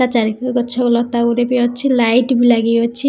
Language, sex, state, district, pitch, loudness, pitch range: Odia, female, Odisha, Khordha, 240 Hz, -15 LUFS, 235-250 Hz